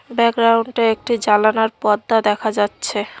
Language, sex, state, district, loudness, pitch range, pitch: Bengali, female, West Bengal, Cooch Behar, -17 LUFS, 210-230 Hz, 220 Hz